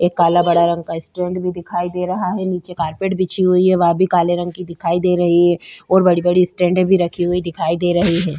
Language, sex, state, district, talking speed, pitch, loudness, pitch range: Hindi, female, Bihar, Vaishali, 250 wpm, 175 Hz, -17 LUFS, 170-180 Hz